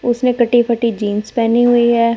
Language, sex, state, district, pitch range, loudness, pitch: Hindi, female, Punjab, Fazilka, 230-240 Hz, -14 LUFS, 235 Hz